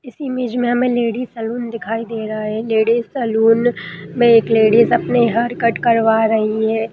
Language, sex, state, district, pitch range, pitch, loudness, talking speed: Hindi, female, Bihar, East Champaran, 220-240 Hz, 230 Hz, -16 LUFS, 180 wpm